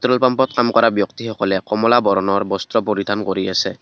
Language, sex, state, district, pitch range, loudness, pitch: Assamese, male, Assam, Kamrup Metropolitan, 100-115 Hz, -17 LUFS, 105 Hz